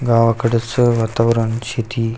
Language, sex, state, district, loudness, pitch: Marathi, male, Maharashtra, Aurangabad, -17 LUFS, 115 Hz